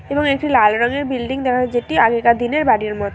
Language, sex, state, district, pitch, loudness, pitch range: Bengali, female, West Bengal, North 24 Parganas, 250 Hz, -16 LUFS, 235-280 Hz